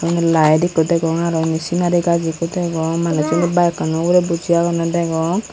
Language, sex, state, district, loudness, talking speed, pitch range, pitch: Chakma, female, Tripura, Unakoti, -17 LUFS, 175 wpm, 160-175 Hz, 170 Hz